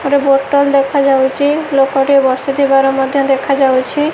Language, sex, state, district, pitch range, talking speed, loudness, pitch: Odia, female, Odisha, Malkangiri, 270-280 Hz, 115 wpm, -12 LUFS, 275 Hz